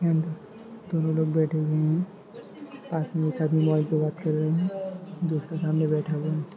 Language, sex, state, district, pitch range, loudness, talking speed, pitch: Hindi, male, Jharkhand, Jamtara, 155-185 Hz, -26 LUFS, 200 wpm, 160 Hz